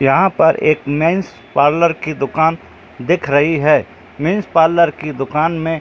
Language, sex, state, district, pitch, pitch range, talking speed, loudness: Hindi, male, Jharkhand, Jamtara, 160 Hz, 145-165 Hz, 155 wpm, -15 LUFS